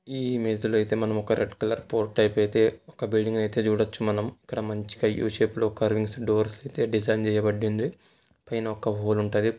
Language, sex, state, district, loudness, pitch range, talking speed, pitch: Telugu, male, Telangana, Karimnagar, -26 LUFS, 105-110 Hz, 190 wpm, 110 Hz